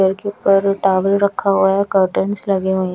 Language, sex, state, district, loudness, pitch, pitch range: Hindi, female, Chhattisgarh, Raipur, -16 LUFS, 195 Hz, 190-200 Hz